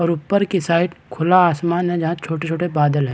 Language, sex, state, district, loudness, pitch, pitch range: Hindi, male, Chhattisgarh, Balrampur, -19 LUFS, 170 Hz, 160-175 Hz